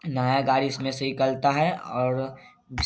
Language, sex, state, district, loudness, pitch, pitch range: Hindi, male, Bihar, Saharsa, -25 LUFS, 135 Hz, 130-135 Hz